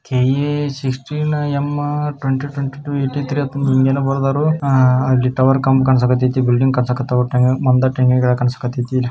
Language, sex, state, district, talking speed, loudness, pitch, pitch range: Kannada, male, Karnataka, Shimoga, 140 wpm, -16 LUFS, 130 Hz, 125-140 Hz